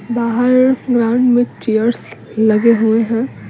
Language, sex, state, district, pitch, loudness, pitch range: Hindi, female, Bihar, Patna, 235 Hz, -14 LUFS, 225-245 Hz